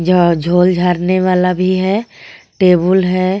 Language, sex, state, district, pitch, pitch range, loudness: Hindi, female, Jharkhand, Garhwa, 185 Hz, 180-185 Hz, -13 LUFS